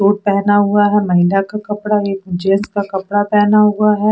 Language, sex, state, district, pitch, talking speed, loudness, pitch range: Hindi, female, Odisha, Sambalpur, 205 Hz, 230 wpm, -14 LUFS, 195-210 Hz